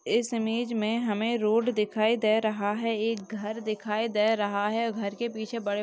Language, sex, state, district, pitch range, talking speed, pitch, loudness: Hindi, female, Chhattisgarh, Sukma, 210-230 Hz, 195 wpm, 220 Hz, -28 LUFS